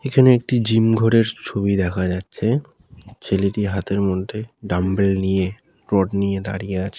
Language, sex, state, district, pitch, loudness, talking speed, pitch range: Bengali, male, West Bengal, Dakshin Dinajpur, 100 Hz, -20 LUFS, 145 wpm, 95-115 Hz